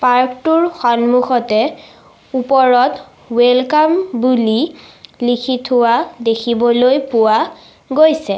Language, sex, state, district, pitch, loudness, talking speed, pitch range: Assamese, female, Assam, Sonitpur, 250 Hz, -14 LUFS, 80 wpm, 235-275 Hz